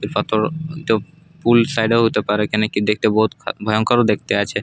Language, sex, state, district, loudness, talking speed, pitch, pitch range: Bengali, male, Jharkhand, Jamtara, -18 LUFS, 195 wpm, 110 Hz, 105-120 Hz